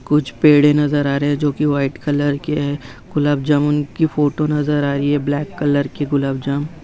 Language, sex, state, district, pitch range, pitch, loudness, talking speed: Hindi, male, Bihar, Jamui, 140-150 Hz, 145 Hz, -17 LUFS, 220 wpm